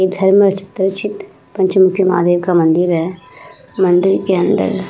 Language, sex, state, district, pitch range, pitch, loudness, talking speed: Hindi, female, Uttar Pradesh, Muzaffarnagar, 175-195 Hz, 190 Hz, -14 LUFS, 110 wpm